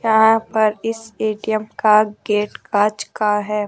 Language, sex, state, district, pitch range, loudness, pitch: Hindi, male, Rajasthan, Jaipur, 210-220 Hz, -18 LUFS, 215 Hz